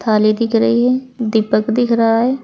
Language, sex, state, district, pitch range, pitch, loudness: Hindi, female, Uttar Pradesh, Saharanpur, 220-245 Hz, 230 Hz, -15 LUFS